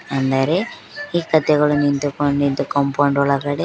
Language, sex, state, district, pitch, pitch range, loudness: Kannada, female, Karnataka, Koppal, 145 Hz, 140-155 Hz, -18 LUFS